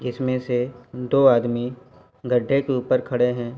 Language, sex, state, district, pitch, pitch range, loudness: Hindi, male, Uttar Pradesh, Varanasi, 125 Hz, 120-130 Hz, -22 LUFS